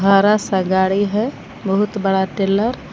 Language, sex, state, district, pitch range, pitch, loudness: Hindi, female, Jharkhand, Palamu, 195-210 Hz, 195 Hz, -17 LUFS